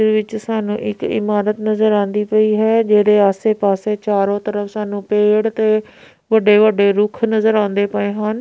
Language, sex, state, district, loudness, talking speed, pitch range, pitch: Punjabi, female, Punjab, Pathankot, -16 LUFS, 170 wpm, 205-215 Hz, 210 Hz